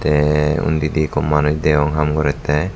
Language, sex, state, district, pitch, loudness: Chakma, male, Tripura, Dhalai, 75 Hz, -17 LUFS